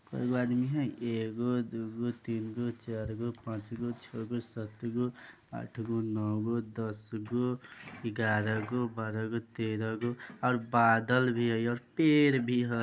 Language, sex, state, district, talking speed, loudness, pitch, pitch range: Bajjika, male, Bihar, Vaishali, 180 wpm, -32 LUFS, 115 Hz, 110-120 Hz